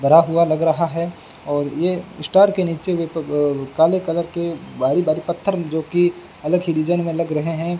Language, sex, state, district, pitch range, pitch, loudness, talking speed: Hindi, male, Rajasthan, Bikaner, 160-175 Hz, 165 Hz, -19 LUFS, 200 wpm